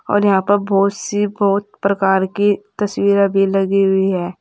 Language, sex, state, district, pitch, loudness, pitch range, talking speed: Hindi, female, Uttar Pradesh, Saharanpur, 200 Hz, -16 LUFS, 195-205 Hz, 175 wpm